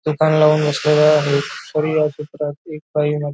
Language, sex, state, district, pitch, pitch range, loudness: Marathi, male, Maharashtra, Nagpur, 150 Hz, 150-155 Hz, -17 LUFS